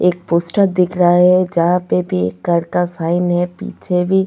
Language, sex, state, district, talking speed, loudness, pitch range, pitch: Hindi, female, Goa, North and South Goa, 210 wpm, -16 LUFS, 170-180 Hz, 180 Hz